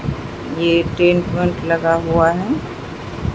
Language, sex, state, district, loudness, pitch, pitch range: Hindi, female, Bihar, Katihar, -17 LUFS, 165 Hz, 165-175 Hz